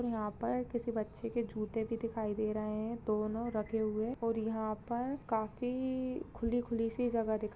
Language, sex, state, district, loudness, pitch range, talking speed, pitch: Hindi, female, Bihar, Madhepura, -37 LUFS, 215-235 Hz, 200 wpm, 225 Hz